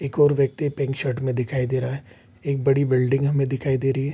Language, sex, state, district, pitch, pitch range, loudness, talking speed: Hindi, male, Bihar, Vaishali, 135 Hz, 130-140 Hz, -22 LUFS, 260 wpm